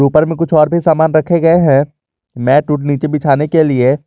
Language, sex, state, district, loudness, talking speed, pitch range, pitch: Hindi, male, Jharkhand, Garhwa, -12 LUFS, 220 wpm, 145-160 Hz, 150 Hz